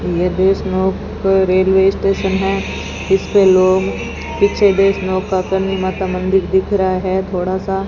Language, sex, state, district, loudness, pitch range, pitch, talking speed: Hindi, female, Rajasthan, Bikaner, -15 LUFS, 185-195 Hz, 190 Hz, 160 wpm